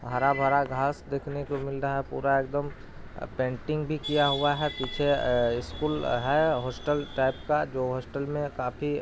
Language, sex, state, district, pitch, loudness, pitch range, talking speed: Bhojpuri, male, Bihar, Saran, 140 Hz, -28 LUFS, 130-145 Hz, 175 wpm